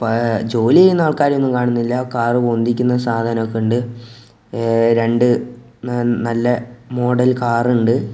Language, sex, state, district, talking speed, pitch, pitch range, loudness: Malayalam, male, Kerala, Kozhikode, 125 wpm, 120 Hz, 115-125 Hz, -16 LUFS